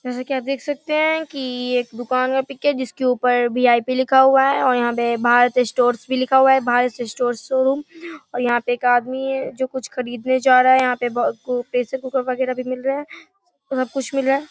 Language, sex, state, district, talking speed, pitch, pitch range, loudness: Hindi, female, Bihar, Darbhanga, 250 wpm, 255 Hz, 245-270 Hz, -19 LUFS